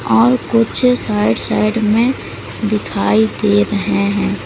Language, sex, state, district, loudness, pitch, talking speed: Hindi, female, Uttar Pradesh, Lalitpur, -15 LUFS, 200 Hz, 120 wpm